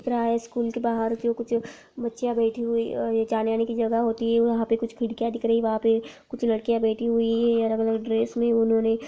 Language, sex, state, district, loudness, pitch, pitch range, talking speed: Hindi, female, Uttar Pradesh, Jyotiba Phule Nagar, -25 LUFS, 230 Hz, 225-235 Hz, 210 wpm